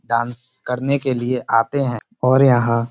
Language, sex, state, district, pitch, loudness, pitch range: Hindi, male, Uttar Pradesh, Budaun, 125 Hz, -18 LUFS, 120-130 Hz